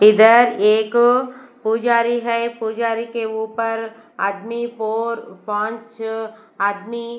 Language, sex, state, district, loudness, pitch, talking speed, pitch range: Hindi, female, Bihar, West Champaran, -19 LUFS, 225 Hz, 90 wpm, 220-235 Hz